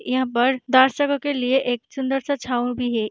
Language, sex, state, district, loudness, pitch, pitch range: Hindi, female, Bihar, Vaishali, -21 LUFS, 260 Hz, 245-270 Hz